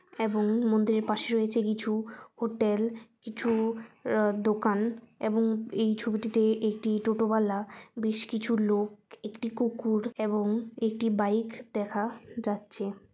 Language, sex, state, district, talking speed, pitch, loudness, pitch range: Bengali, female, West Bengal, Malda, 115 wpm, 220 Hz, -29 LUFS, 215-225 Hz